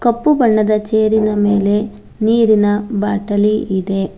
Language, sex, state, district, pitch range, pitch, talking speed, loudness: Kannada, female, Karnataka, Bangalore, 205-220 Hz, 210 Hz, 100 wpm, -15 LUFS